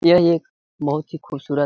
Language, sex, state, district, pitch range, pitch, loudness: Hindi, male, Bihar, Jahanabad, 145-170 Hz, 155 Hz, -21 LUFS